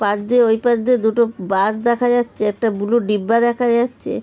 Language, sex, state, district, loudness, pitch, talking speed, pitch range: Bengali, female, West Bengal, Dakshin Dinajpur, -17 LUFS, 230 Hz, 200 wpm, 210-240 Hz